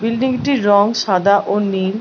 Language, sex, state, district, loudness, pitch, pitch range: Bengali, female, West Bengal, Malda, -15 LUFS, 205 Hz, 200-230 Hz